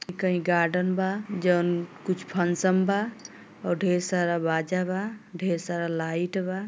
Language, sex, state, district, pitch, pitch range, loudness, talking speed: Bhojpuri, female, Uttar Pradesh, Gorakhpur, 180 Hz, 175-190 Hz, -27 LUFS, 145 wpm